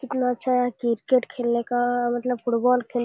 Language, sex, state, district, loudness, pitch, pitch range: Hindi, male, Bihar, Jamui, -23 LUFS, 245 Hz, 240-250 Hz